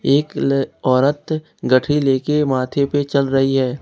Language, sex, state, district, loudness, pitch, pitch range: Hindi, male, Jharkhand, Ranchi, -18 LUFS, 140 Hz, 135-145 Hz